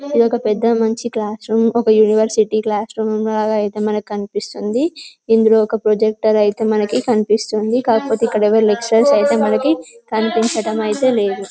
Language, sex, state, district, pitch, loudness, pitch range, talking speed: Telugu, female, Telangana, Karimnagar, 220 Hz, -16 LUFS, 215-225 Hz, 150 wpm